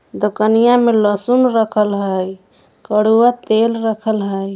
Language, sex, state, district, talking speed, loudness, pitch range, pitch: Magahi, female, Jharkhand, Palamu, 120 wpm, -15 LUFS, 200-230 Hz, 215 Hz